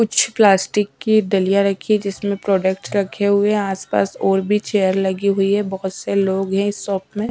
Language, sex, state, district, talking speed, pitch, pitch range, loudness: Hindi, female, Bihar, West Champaran, 215 wpm, 200 Hz, 190-205 Hz, -18 LUFS